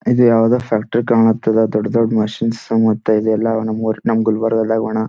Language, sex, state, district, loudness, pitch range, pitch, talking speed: Kannada, male, Karnataka, Gulbarga, -16 LUFS, 110-115 Hz, 110 Hz, 155 wpm